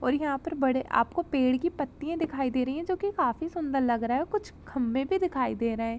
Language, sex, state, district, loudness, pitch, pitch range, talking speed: Hindi, female, Uttar Pradesh, Jalaun, -29 LUFS, 275 Hz, 255-335 Hz, 250 wpm